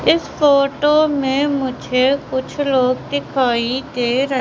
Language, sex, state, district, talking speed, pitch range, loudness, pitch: Hindi, female, Madhya Pradesh, Katni, 120 wpm, 255-285 Hz, -17 LUFS, 270 Hz